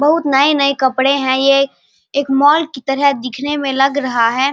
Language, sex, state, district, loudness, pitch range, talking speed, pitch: Hindi, male, Bihar, Saharsa, -14 LUFS, 265-285 Hz, 185 wpm, 275 Hz